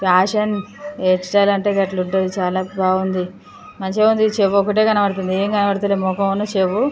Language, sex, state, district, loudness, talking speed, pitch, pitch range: Telugu, female, Andhra Pradesh, Chittoor, -18 LUFS, 155 wpm, 195 Hz, 185-205 Hz